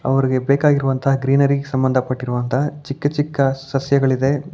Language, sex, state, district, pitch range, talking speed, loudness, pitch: Kannada, male, Karnataka, Bangalore, 130-140 Hz, 95 wpm, -18 LUFS, 135 Hz